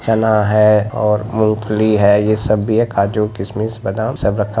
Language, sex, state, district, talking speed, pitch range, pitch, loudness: Hindi, male, Bihar, Begusarai, 180 wpm, 105-110 Hz, 105 Hz, -15 LUFS